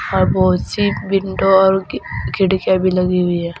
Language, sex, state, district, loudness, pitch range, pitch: Hindi, female, Uttar Pradesh, Saharanpur, -16 LUFS, 180-190 Hz, 190 Hz